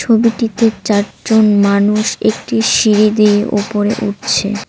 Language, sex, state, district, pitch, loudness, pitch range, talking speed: Bengali, female, West Bengal, Cooch Behar, 210 Hz, -13 LUFS, 205-220 Hz, 100 wpm